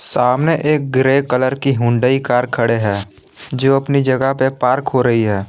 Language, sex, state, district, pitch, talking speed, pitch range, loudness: Hindi, male, Jharkhand, Palamu, 130 Hz, 185 wpm, 120-135 Hz, -15 LUFS